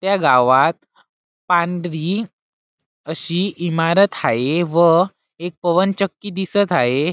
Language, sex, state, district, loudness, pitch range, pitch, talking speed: Marathi, male, Maharashtra, Sindhudurg, -17 LUFS, 160-190 Hz, 175 Hz, 90 wpm